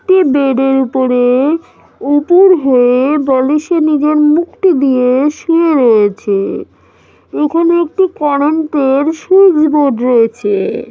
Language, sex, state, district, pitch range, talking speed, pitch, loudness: Bengali, female, West Bengal, Malda, 260-325 Hz, 105 wpm, 290 Hz, -11 LUFS